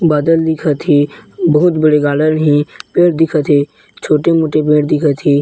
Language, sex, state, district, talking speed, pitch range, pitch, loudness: Chhattisgarhi, male, Chhattisgarh, Bilaspur, 165 wpm, 145-165 Hz, 150 Hz, -13 LUFS